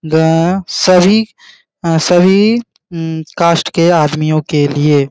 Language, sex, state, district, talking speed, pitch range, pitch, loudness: Hindi, male, Bihar, Araria, 130 wpm, 155-185 Hz, 170 Hz, -12 LUFS